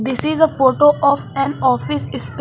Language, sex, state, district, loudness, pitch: English, female, Jharkhand, Garhwa, -16 LUFS, 250 Hz